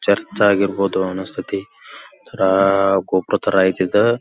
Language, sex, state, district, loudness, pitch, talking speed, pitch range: Kannada, male, Karnataka, Belgaum, -18 LUFS, 95 Hz, 100 wpm, 95-100 Hz